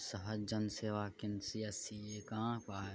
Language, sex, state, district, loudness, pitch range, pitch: Hindi, male, Bihar, Araria, -42 LUFS, 105-110 Hz, 105 Hz